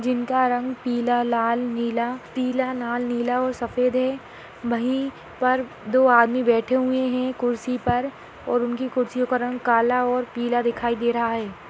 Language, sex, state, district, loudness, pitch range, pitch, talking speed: Hindi, female, Chhattisgarh, Bastar, -23 LUFS, 235-255 Hz, 245 Hz, 165 wpm